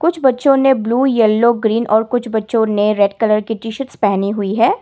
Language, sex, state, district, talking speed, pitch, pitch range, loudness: Hindi, female, Assam, Kamrup Metropolitan, 225 wpm, 225 Hz, 215-260 Hz, -15 LUFS